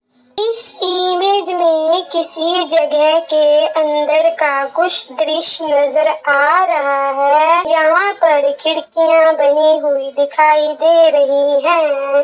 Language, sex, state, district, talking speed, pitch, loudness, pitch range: Hindi, female, Jharkhand, Sahebganj, 115 wpm, 315 Hz, -13 LUFS, 290-330 Hz